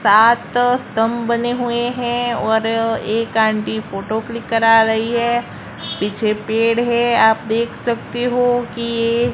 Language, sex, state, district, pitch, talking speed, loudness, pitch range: Hindi, female, Gujarat, Gandhinagar, 230 Hz, 135 wpm, -17 LUFS, 220-240 Hz